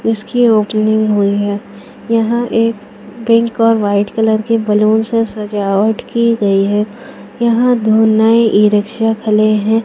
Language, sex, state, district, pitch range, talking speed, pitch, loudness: Hindi, female, Chhattisgarh, Raipur, 210-230 Hz, 145 wpm, 220 Hz, -13 LUFS